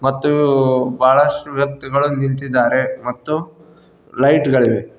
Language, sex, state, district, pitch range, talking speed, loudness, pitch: Kannada, male, Karnataka, Koppal, 130-145 Hz, 85 wpm, -16 LUFS, 135 Hz